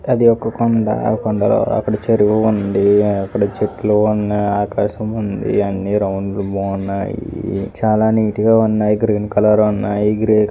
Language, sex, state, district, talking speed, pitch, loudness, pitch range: Telugu, male, Andhra Pradesh, Visakhapatnam, 145 wpm, 105 Hz, -16 LUFS, 100-110 Hz